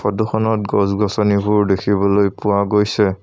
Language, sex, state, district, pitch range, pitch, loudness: Assamese, male, Assam, Sonitpur, 100-105 Hz, 105 Hz, -17 LUFS